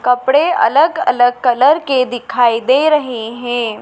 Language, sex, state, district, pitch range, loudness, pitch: Hindi, female, Madhya Pradesh, Dhar, 245-275 Hz, -13 LUFS, 250 Hz